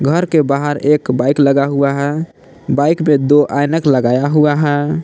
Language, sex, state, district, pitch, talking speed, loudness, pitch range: Hindi, male, Jharkhand, Palamu, 145 Hz, 180 wpm, -14 LUFS, 140-150 Hz